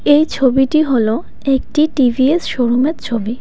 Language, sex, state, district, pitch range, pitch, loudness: Bengali, female, West Bengal, Cooch Behar, 245-300 Hz, 265 Hz, -15 LUFS